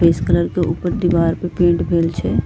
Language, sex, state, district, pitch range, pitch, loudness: Angika, female, Bihar, Bhagalpur, 140-175 Hz, 170 Hz, -17 LUFS